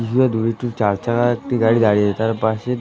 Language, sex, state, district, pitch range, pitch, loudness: Bengali, male, West Bengal, Kolkata, 110-120 Hz, 115 Hz, -18 LUFS